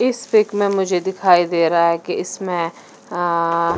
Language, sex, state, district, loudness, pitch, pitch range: Hindi, female, Punjab, Fazilka, -18 LUFS, 175 Hz, 170-195 Hz